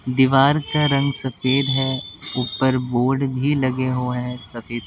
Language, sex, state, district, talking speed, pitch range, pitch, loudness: Hindi, male, Delhi, New Delhi, 150 wpm, 125-135 Hz, 130 Hz, -20 LUFS